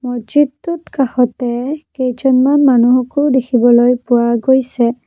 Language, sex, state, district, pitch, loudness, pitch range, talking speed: Assamese, female, Assam, Kamrup Metropolitan, 255 Hz, -13 LUFS, 240-270 Hz, 85 wpm